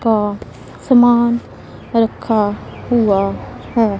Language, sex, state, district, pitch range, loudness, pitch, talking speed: Hindi, female, Punjab, Pathankot, 205-235 Hz, -16 LUFS, 225 Hz, 75 wpm